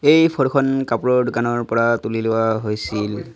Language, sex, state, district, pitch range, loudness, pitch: Assamese, male, Assam, Sonitpur, 110-135 Hz, -19 LUFS, 115 Hz